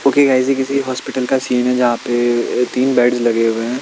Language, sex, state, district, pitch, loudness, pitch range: Hindi, male, Chandigarh, Chandigarh, 125 Hz, -16 LUFS, 120-135 Hz